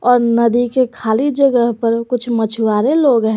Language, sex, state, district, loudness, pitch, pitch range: Hindi, female, Jharkhand, Garhwa, -15 LUFS, 235 Hz, 230-250 Hz